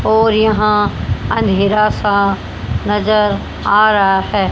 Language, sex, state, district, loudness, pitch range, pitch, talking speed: Hindi, female, Haryana, Jhajjar, -14 LUFS, 195-215 Hz, 205 Hz, 105 wpm